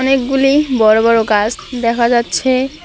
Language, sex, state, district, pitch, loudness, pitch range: Bengali, female, West Bengal, Alipurduar, 240 Hz, -13 LUFS, 230-270 Hz